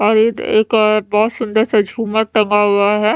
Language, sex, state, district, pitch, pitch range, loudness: Hindi, female, Haryana, Charkhi Dadri, 215 Hz, 210-220 Hz, -15 LUFS